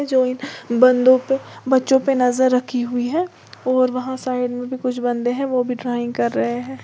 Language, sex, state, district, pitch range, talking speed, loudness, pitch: Hindi, female, Uttar Pradesh, Lalitpur, 245-260 Hz, 195 wpm, -19 LUFS, 255 Hz